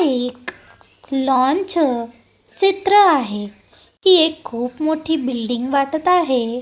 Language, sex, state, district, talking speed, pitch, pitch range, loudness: Marathi, female, Maharashtra, Gondia, 100 wpm, 275 Hz, 245-340 Hz, -17 LUFS